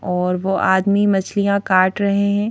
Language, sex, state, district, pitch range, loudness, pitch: Hindi, female, Madhya Pradesh, Bhopal, 190-200 Hz, -17 LUFS, 195 Hz